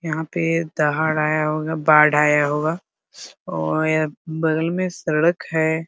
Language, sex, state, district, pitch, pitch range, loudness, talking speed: Hindi, male, Bihar, Muzaffarpur, 155 Hz, 155-165 Hz, -20 LUFS, 145 wpm